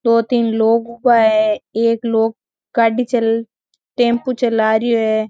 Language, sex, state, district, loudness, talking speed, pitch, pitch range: Marwari, female, Rajasthan, Nagaur, -16 LUFS, 145 wpm, 230 Hz, 225-235 Hz